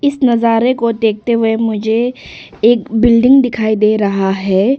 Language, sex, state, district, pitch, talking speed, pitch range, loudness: Hindi, female, Arunachal Pradesh, Longding, 230 Hz, 150 wpm, 215-240 Hz, -13 LUFS